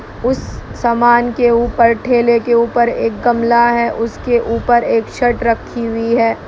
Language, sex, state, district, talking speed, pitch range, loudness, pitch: Hindi, male, Bihar, Kishanganj, 160 wpm, 230-240 Hz, -14 LUFS, 235 Hz